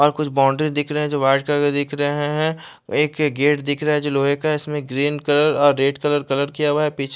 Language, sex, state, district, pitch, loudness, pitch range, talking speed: Hindi, male, Chandigarh, Chandigarh, 145 Hz, -19 LUFS, 140-150 Hz, 275 wpm